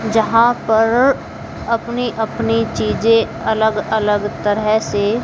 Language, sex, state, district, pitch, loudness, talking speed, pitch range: Hindi, female, Haryana, Jhajjar, 225 Hz, -16 LUFS, 105 wpm, 215-230 Hz